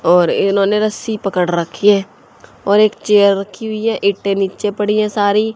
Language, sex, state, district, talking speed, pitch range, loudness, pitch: Hindi, female, Haryana, Charkhi Dadri, 195 wpm, 195-215 Hz, -15 LUFS, 205 Hz